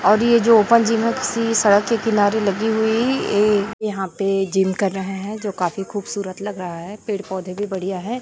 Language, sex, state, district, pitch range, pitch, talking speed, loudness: Hindi, female, Chhattisgarh, Raipur, 195-220 Hz, 205 Hz, 210 wpm, -19 LUFS